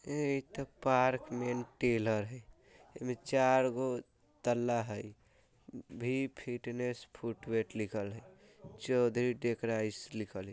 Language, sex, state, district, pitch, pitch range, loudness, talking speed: Bajjika, male, Bihar, Vaishali, 120 Hz, 110-130 Hz, -35 LUFS, 125 wpm